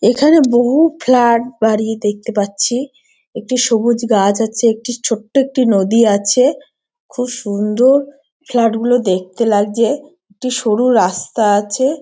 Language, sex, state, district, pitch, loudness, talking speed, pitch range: Bengali, female, West Bengal, North 24 Parganas, 235 Hz, -14 LUFS, 125 wpm, 215-260 Hz